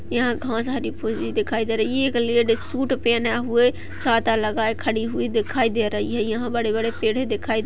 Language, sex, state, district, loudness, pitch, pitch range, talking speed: Hindi, female, Uttar Pradesh, Jyotiba Phule Nagar, -22 LUFS, 230 Hz, 225-240 Hz, 210 wpm